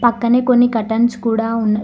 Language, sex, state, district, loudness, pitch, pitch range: Telugu, female, Telangana, Mahabubabad, -15 LUFS, 230 Hz, 225-240 Hz